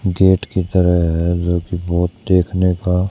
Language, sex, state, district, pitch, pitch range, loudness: Hindi, male, Haryana, Charkhi Dadri, 90 Hz, 85-95 Hz, -17 LUFS